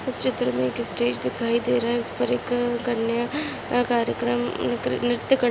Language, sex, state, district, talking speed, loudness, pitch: Hindi, female, Goa, North and South Goa, 185 wpm, -24 LUFS, 235 Hz